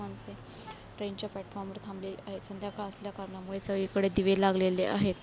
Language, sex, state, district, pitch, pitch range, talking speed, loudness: Marathi, female, Maharashtra, Dhule, 195 Hz, 190-200 Hz, 185 wpm, -33 LUFS